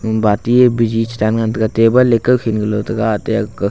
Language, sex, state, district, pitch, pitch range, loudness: Wancho, male, Arunachal Pradesh, Longding, 110 Hz, 110-115 Hz, -14 LUFS